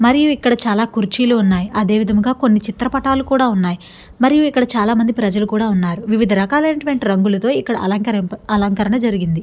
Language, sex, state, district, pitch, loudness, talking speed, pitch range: Telugu, female, Andhra Pradesh, Chittoor, 220 Hz, -16 LUFS, 155 wpm, 205-250 Hz